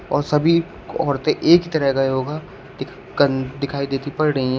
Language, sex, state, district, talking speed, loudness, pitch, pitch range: Hindi, male, Uttar Pradesh, Shamli, 170 wpm, -20 LUFS, 145 Hz, 135-155 Hz